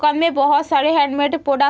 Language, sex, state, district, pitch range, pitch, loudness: Hindi, female, Uttar Pradesh, Deoria, 285-315 Hz, 290 Hz, -17 LUFS